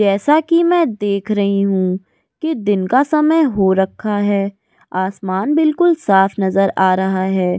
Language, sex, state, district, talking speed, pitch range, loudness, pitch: Hindi, female, Goa, North and South Goa, 160 wpm, 190-300 Hz, -16 LUFS, 200 Hz